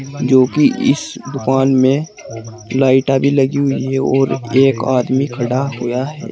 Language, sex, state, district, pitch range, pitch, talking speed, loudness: Hindi, male, Uttar Pradesh, Saharanpur, 130-135 Hz, 135 Hz, 150 wpm, -15 LUFS